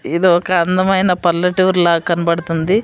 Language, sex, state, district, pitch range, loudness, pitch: Telugu, female, Andhra Pradesh, Sri Satya Sai, 170-185 Hz, -15 LUFS, 180 Hz